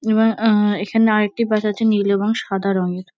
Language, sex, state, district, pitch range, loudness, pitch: Bengali, female, West Bengal, North 24 Parganas, 200-220 Hz, -18 LUFS, 210 Hz